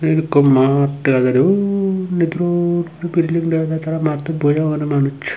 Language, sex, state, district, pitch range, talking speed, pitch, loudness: Chakma, male, Tripura, Unakoti, 145-170 Hz, 170 wpm, 160 Hz, -17 LUFS